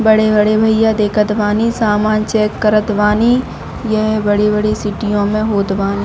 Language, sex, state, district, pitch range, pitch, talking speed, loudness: Hindi, female, Chhattisgarh, Bilaspur, 210-215 Hz, 215 Hz, 140 wpm, -14 LUFS